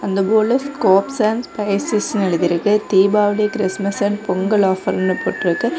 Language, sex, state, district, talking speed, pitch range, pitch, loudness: Tamil, female, Tamil Nadu, Kanyakumari, 135 wpm, 190-215 Hz, 200 Hz, -17 LUFS